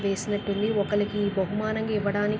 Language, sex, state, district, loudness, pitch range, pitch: Telugu, female, Andhra Pradesh, Krishna, -27 LUFS, 200-210 Hz, 205 Hz